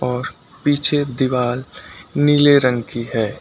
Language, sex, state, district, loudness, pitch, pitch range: Hindi, male, Uttar Pradesh, Lucknow, -18 LUFS, 130 Hz, 125-145 Hz